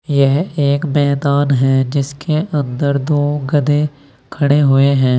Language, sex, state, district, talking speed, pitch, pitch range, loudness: Hindi, male, Uttar Pradesh, Saharanpur, 125 wpm, 140 Hz, 140-145 Hz, -15 LUFS